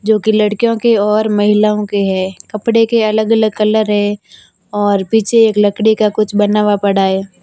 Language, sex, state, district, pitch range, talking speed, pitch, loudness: Hindi, female, Rajasthan, Barmer, 205-220 Hz, 195 wpm, 210 Hz, -13 LUFS